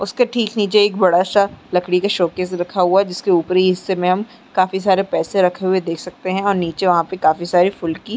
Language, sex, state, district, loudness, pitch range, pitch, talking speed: Hindi, female, Chhattisgarh, Sarguja, -17 LUFS, 180-200 Hz, 185 Hz, 235 wpm